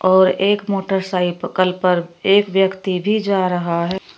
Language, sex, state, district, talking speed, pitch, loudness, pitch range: Hindi, female, Uttar Pradesh, Shamli, 145 wpm, 185 Hz, -18 LUFS, 180-195 Hz